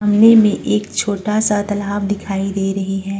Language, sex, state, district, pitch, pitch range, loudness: Hindi, female, Uttar Pradesh, Jyotiba Phule Nagar, 205 Hz, 195-210 Hz, -16 LUFS